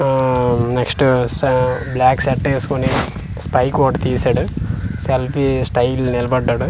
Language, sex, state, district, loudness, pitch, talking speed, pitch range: Telugu, male, Andhra Pradesh, Manyam, -17 LUFS, 130 Hz, 105 wpm, 120-130 Hz